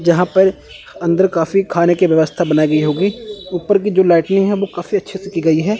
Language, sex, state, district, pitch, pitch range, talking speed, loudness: Hindi, male, Chandigarh, Chandigarh, 180 Hz, 170-195 Hz, 225 wpm, -15 LUFS